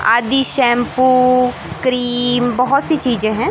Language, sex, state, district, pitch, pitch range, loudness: Hindi, male, Madhya Pradesh, Katni, 250 Hz, 245-255 Hz, -13 LUFS